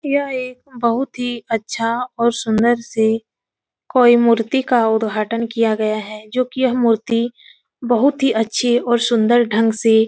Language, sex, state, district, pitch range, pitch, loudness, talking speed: Hindi, female, Uttar Pradesh, Etah, 225-245 Hz, 235 Hz, -17 LUFS, 160 wpm